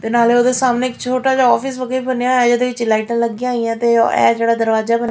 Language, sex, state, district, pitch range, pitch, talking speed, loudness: Punjabi, female, Punjab, Fazilka, 230-255 Hz, 240 Hz, 270 wpm, -15 LUFS